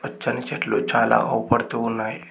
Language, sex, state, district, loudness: Telugu, male, Telangana, Mahabubabad, -22 LUFS